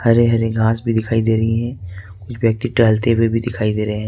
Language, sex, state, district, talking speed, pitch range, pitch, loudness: Hindi, male, Jharkhand, Ranchi, 235 wpm, 110-115 Hz, 115 Hz, -17 LUFS